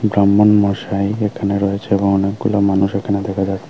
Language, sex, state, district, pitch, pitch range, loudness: Bengali, male, Tripura, Unakoti, 100 Hz, 100-105 Hz, -16 LUFS